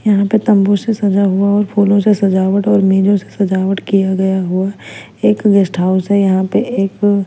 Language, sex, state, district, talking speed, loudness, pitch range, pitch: Hindi, female, Bihar, West Champaran, 200 wpm, -13 LUFS, 190-205 Hz, 200 Hz